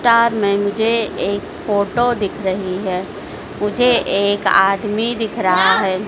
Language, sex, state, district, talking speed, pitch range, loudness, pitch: Hindi, female, Madhya Pradesh, Dhar, 140 wpm, 195-225 Hz, -17 LUFS, 205 Hz